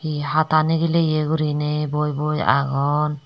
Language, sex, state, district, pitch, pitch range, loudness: Chakma, female, Tripura, Dhalai, 150 Hz, 150-155 Hz, -20 LUFS